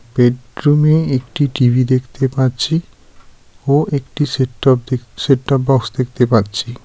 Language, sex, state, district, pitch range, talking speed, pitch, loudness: Bengali, male, West Bengal, Darjeeling, 125-140 Hz, 130 wpm, 130 Hz, -16 LUFS